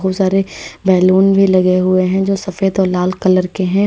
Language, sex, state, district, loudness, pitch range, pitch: Hindi, female, Uttar Pradesh, Lalitpur, -14 LUFS, 185-195 Hz, 190 Hz